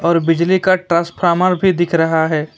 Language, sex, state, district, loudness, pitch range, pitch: Hindi, male, West Bengal, Alipurduar, -15 LUFS, 165-185 Hz, 170 Hz